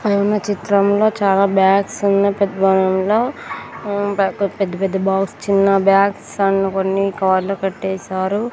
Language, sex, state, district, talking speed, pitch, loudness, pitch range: Telugu, female, Andhra Pradesh, Sri Satya Sai, 110 wpm, 195 Hz, -17 LUFS, 195-200 Hz